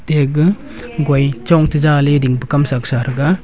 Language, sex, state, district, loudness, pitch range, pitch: Wancho, male, Arunachal Pradesh, Longding, -14 LUFS, 135-155 Hz, 145 Hz